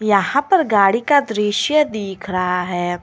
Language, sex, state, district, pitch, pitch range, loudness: Hindi, female, Jharkhand, Garhwa, 205 Hz, 185-280 Hz, -17 LUFS